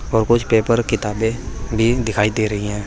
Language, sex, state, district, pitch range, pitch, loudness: Hindi, male, Uttar Pradesh, Saharanpur, 105-115 Hz, 110 Hz, -18 LUFS